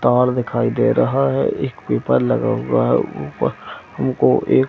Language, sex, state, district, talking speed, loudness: Hindi, male, Chhattisgarh, Bilaspur, 180 wpm, -18 LUFS